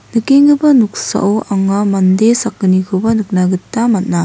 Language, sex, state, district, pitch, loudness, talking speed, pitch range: Garo, female, Meghalaya, West Garo Hills, 205 Hz, -12 LUFS, 115 wpm, 190-230 Hz